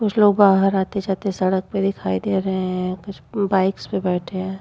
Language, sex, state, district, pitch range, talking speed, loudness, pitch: Hindi, female, Uttar Pradesh, Muzaffarnagar, 185-200 Hz, 210 wpm, -20 LUFS, 190 Hz